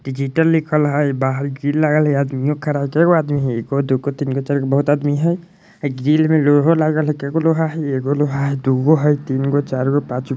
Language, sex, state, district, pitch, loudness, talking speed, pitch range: Bajjika, female, Bihar, Vaishali, 145 Hz, -17 LUFS, 260 wpm, 140-155 Hz